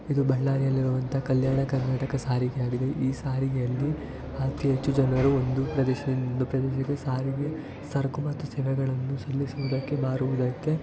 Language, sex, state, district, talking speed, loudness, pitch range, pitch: Kannada, male, Karnataka, Bellary, 115 wpm, -27 LUFS, 130-140 Hz, 135 Hz